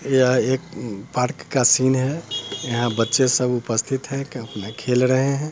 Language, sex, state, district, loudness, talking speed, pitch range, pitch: Hindi, male, Bihar, Muzaffarpur, -21 LUFS, 150 wpm, 120-135 Hz, 125 Hz